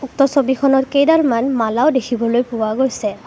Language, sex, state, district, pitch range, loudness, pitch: Assamese, female, Assam, Kamrup Metropolitan, 235-275 Hz, -16 LUFS, 265 Hz